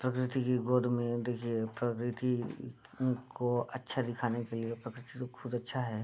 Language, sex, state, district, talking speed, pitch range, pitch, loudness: Hindi, male, Bihar, Bhagalpur, 160 wpm, 120-125 Hz, 120 Hz, -35 LUFS